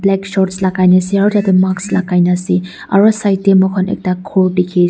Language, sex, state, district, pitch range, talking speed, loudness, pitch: Nagamese, female, Nagaland, Dimapur, 180-195 Hz, 220 wpm, -13 LUFS, 190 Hz